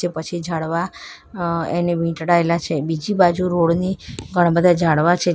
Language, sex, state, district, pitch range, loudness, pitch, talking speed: Gujarati, female, Gujarat, Valsad, 165-175 Hz, -19 LUFS, 170 Hz, 155 wpm